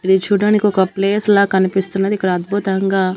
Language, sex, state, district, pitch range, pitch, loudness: Telugu, female, Andhra Pradesh, Annamaya, 190-200 Hz, 195 Hz, -16 LUFS